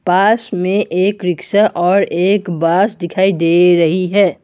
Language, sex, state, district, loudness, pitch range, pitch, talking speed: Hindi, male, Assam, Kamrup Metropolitan, -14 LUFS, 175-200 Hz, 185 Hz, 150 wpm